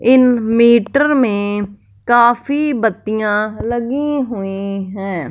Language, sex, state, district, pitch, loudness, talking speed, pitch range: Hindi, female, Punjab, Fazilka, 230 Hz, -15 LUFS, 90 wpm, 205-250 Hz